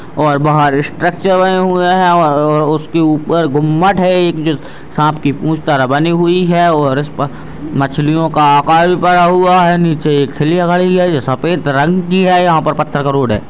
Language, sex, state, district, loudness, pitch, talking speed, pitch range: Hindi, male, Bihar, Purnia, -12 LUFS, 155 Hz, 205 wpm, 145-175 Hz